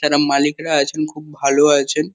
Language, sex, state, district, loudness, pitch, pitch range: Bengali, male, West Bengal, Kolkata, -17 LUFS, 150 Hz, 145-155 Hz